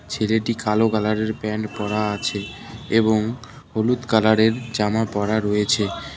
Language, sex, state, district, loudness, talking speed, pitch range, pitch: Bengali, male, West Bengal, Cooch Behar, -21 LUFS, 115 wpm, 105-115 Hz, 110 Hz